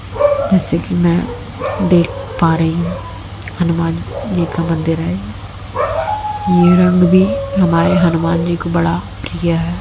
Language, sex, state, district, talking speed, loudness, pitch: Hindi, female, Haryana, Jhajjar, 135 wpm, -15 LUFS, 165 Hz